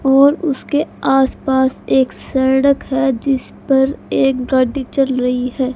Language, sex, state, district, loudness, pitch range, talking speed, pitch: Hindi, female, Haryana, Charkhi Dadri, -16 LUFS, 260-270 Hz, 145 wpm, 265 Hz